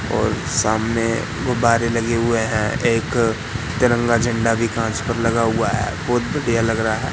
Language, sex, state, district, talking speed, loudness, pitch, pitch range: Hindi, male, Madhya Pradesh, Katni, 170 wpm, -19 LUFS, 115 Hz, 110-120 Hz